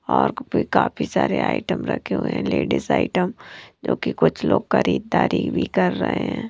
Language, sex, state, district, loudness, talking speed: Hindi, female, Punjab, Kapurthala, -21 LUFS, 175 wpm